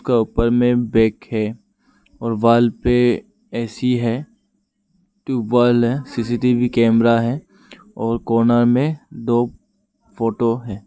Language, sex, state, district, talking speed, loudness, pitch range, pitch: Hindi, male, Arunachal Pradesh, Lower Dibang Valley, 110 wpm, -18 LUFS, 115-130 Hz, 120 Hz